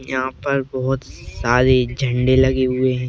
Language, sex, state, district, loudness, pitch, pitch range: Hindi, male, Madhya Pradesh, Bhopal, -18 LUFS, 130 Hz, 125-130 Hz